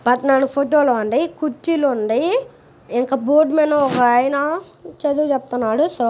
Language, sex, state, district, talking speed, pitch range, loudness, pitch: Telugu, female, Andhra Pradesh, Guntur, 130 wpm, 250-305 Hz, -18 LUFS, 280 Hz